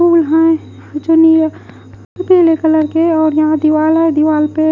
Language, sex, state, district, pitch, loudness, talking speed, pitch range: Hindi, female, Odisha, Khordha, 320 Hz, -12 LUFS, 190 wpm, 310-325 Hz